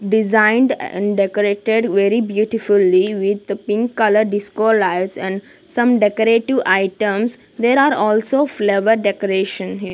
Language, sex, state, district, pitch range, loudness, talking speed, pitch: English, female, Punjab, Kapurthala, 200-225 Hz, -16 LUFS, 115 wpm, 210 Hz